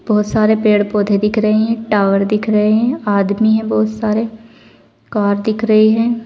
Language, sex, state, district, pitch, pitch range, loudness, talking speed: Hindi, female, Uttar Pradesh, Saharanpur, 215 Hz, 210-220 Hz, -14 LUFS, 180 wpm